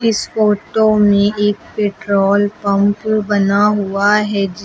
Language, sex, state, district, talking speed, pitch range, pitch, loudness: Hindi, female, Uttar Pradesh, Lucknow, 130 wpm, 200-210 Hz, 205 Hz, -15 LUFS